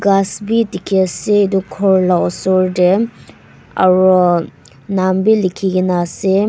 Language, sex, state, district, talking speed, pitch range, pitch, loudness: Nagamese, female, Nagaland, Kohima, 140 wpm, 180-200 Hz, 185 Hz, -14 LUFS